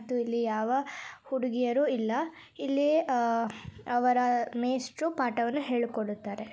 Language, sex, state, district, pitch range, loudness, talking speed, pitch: Kannada, female, Karnataka, Raichur, 235-265 Hz, -29 LUFS, 100 wpm, 245 Hz